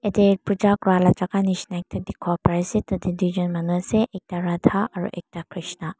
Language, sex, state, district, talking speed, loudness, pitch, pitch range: Nagamese, female, Mizoram, Aizawl, 180 wpm, -23 LUFS, 180 Hz, 175-200 Hz